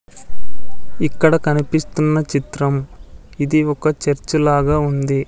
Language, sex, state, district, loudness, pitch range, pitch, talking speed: Telugu, male, Andhra Pradesh, Sri Satya Sai, -18 LUFS, 140-155 Hz, 150 Hz, 90 wpm